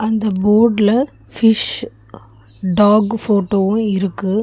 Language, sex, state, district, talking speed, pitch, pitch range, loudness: Tamil, female, Tamil Nadu, Chennai, 80 wpm, 205 Hz, 190-220 Hz, -15 LUFS